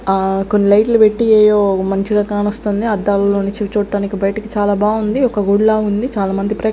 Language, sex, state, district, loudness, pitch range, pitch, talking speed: Telugu, female, Andhra Pradesh, Sri Satya Sai, -15 LUFS, 200-215 Hz, 205 Hz, 180 wpm